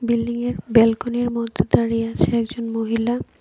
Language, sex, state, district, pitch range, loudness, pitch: Bengali, female, Tripura, West Tripura, 220-235 Hz, -21 LUFS, 230 Hz